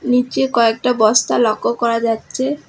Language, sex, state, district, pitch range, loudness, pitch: Bengali, female, West Bengal, Alipurduar, 230-255 Hz, -16 LUFS, 235 Hz